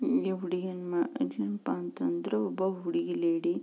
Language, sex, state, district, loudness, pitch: Kannada, female, Karnataka, Belgaum, -32 LUFS, 185 Hz